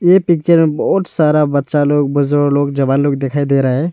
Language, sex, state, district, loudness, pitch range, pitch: Hindi, male, Arunachal Pradesh, Longding, -14 LUFS, 140-160 Hz, 145 Hz